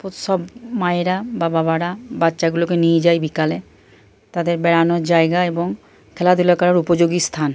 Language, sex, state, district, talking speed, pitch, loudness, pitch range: Bengali, male, Jharkhand, Jamtara, 135 wpm, 170 Hz, -18 LUFS, 165-180 Hz